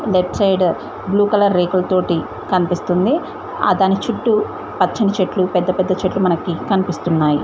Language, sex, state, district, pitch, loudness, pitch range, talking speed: Telugu, female, Telangana, Mahabubabad, 185 Hz, -17 LUFS, 180-195 Hz, 130 wpm